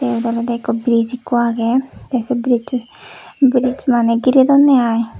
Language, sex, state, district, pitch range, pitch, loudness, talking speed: Chakma, female, Tripura, West Tripura, 235-255 Hz, 245 Hz, -16 LUFS, 160 wpm